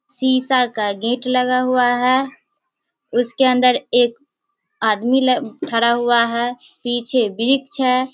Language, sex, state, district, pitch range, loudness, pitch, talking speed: Hindi, female, Bihar, Sitamarhi, 240-265 Hz, -17 LUFS, 250 Hz, 125 wpm